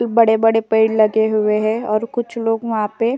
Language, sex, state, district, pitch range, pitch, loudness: Hindi, female, Uttar Pradesh, Jyotiba Phule Nagar, 215-230 Hz, 225 Hz, -17 LUFS